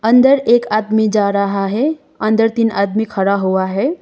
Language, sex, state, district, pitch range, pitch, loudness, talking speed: Hindi, female, Sikkim, Gangtok, 200-240 Hz, 215 Hz, -15 LUFS, 180 wpm